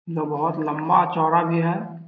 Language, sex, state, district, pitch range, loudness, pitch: Hindi, male, Bihar, Sitamarhi, 160-170 Hz, -21 LUFS, 170 Hz